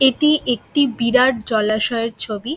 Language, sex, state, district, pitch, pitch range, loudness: Bengali, female, West Bengal, Dakshin Dinajpur, 240 Hz, 225-270 Hz, -18 LUFS